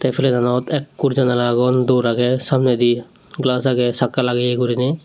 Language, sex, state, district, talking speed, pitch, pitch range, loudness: Chakma, male, Tripura, Dhalai, 155 wpm, 125 Hz, 125-130 Hz, -18 LUFS